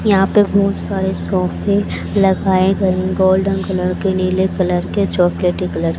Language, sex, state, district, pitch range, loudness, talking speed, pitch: Hindi, female, Haryana, Jhajjar, 185-195 Hz, -16 LUFS, 160 wpm, 190 Hz